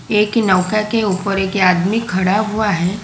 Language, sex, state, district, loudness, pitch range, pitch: Hindi, female, Gujarat, Valsad, -16 LUFS, 185-215 Hz, 205 Hz